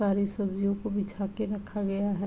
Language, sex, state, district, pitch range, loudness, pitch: Hindi, female, Uttar Pradesh, Varanasi, 200-205 Hz, -31 LUFS, 200 Hz